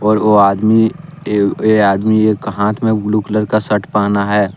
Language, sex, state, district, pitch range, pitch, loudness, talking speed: Hindi, male, Jharkhand, Deoghar, 100-110 Hz, 105 Hz, -14 LUFS, 195 wpm